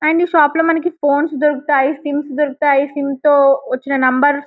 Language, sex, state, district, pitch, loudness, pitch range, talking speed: Telugu, female, Telangana, Karimnagar, 290 Hz, -15 LUFS, 275-300 Hz, 185 wpm